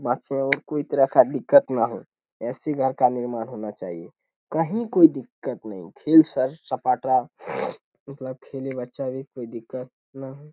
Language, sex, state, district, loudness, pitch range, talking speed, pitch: Hindi, male, Uttar Pradesh, Muzaffarnagar, -23 LUFS, 125-145 Hz, 155 wpm, 130 Hz